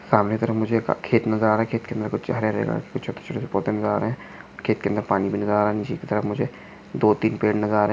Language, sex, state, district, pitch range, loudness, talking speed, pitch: Hindi, male, Maharashtra, Chandrapur, 105-110 Hz, -23 LUFS, 220 wpm, 105 Hz